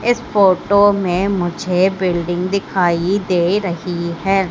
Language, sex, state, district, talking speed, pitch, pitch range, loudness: Hindi, female, Madhya Pradesh, Katni, 120 wpm, 185 Hz, 175-195 Hz, -16 LUFS